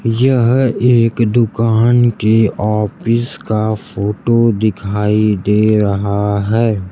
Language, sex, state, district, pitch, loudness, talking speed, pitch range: Hindi, male, Bihar, Kaimur, 110 Hz, -14 LUFS, 95 wpm, 105-115 Hz